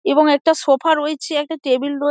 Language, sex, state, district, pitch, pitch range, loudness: Bengali, female, West Bengal, Dakshin Dinajpur, 295 Hz, 285-315 Hz, -17 LUFS